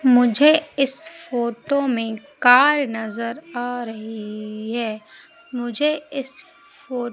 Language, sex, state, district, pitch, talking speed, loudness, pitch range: Hindi, female, Madhya Pradesh, Umaria, 245 Hz, 100 wpm, -21 LUFS, 230-285 Hz